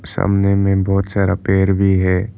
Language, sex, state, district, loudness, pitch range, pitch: Hindi, male, Arunachal Pradesh, Lower Dibang Valley, -16 LUFS, 95-100 Hz, 100 Hz